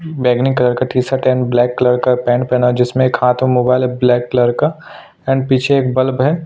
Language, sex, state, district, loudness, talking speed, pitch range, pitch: Hindi, male, Maharashtra, Aurangabad, -14 LUFS, 230 wpm, 125-130 Hz, 125 Hz